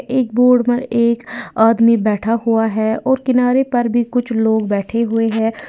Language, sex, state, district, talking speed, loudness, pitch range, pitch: Hindi, female, Uttar Pradesh, Lalitpur, 180 wpm, -16 LUFS, 225-245 Hz, 235 Hz